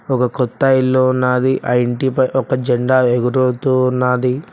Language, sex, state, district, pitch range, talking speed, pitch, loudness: Telugu, male, Telangana, Mahabubabad, 125-130 Hz, 145 wpm, 130 Hz, -16 LUFS